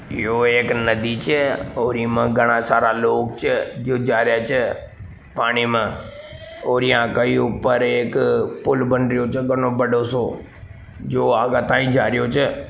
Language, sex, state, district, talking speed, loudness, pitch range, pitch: Marwari, male, Rajasthan, Nagaur, 155 wpm, -19 LUFS, 115-130 Hz, 120 Hz